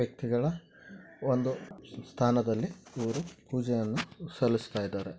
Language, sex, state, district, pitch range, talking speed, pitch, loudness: Kannada, male, Karnataka, Gulbarga, 115-155 Hz, 45 wpm, 120 Hz, -32 LUFS